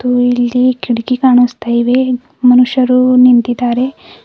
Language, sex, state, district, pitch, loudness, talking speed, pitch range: Kannada, female, Karnataka, Bidar, 250 Hz, -11 LUFS, 85 wpm, 245-255 Hz